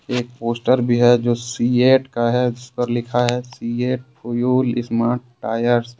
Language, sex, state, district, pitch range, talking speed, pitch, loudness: Hindi, male, Jharkhand, Deoghar, 120-125 Hz, 160 wpm, 120 Hz, -19 LUFS